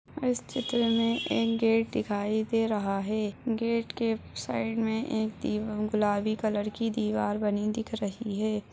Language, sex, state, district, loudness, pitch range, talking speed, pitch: Hindi, female, Chhattisgarh, Balrampur, -29 LUFS, 210-230 Hz, 160 wpm, 220 Hz